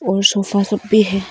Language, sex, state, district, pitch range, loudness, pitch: Hindi, female, Arunachal Pradesh, Longding, 195-210 Hz, -16 LUFS, 200 Hz